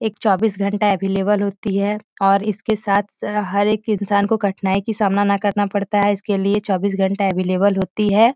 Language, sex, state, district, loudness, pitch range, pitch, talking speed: Hindi, female, Bihar, Jahanabad, -19 LUFS, 195-210 Hz, 200 Hz, 185 wpm